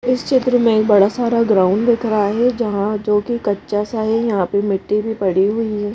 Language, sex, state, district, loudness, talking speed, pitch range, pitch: Hindi, female, Madhya Pradesh, Bhopal, -17 LUFS, 210 wpm, 205-235 Hz, 215 Hz